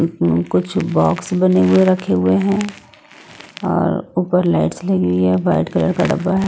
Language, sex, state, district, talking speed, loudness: Hindi, female, Odisha, Sambalpur, 165 wpm, -16 LUFS